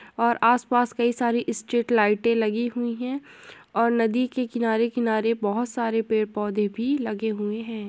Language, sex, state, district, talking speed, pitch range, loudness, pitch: Hindi, female, Uttar Pradesh, Etah, 165 wpm, 220-240 Hz, -24 LUFS, 230 Hz